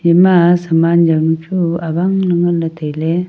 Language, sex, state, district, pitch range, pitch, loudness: Wancho, female, Arunachal Pradesh, Longding, 165-175 Hz, 170 Hz, -13 LUFS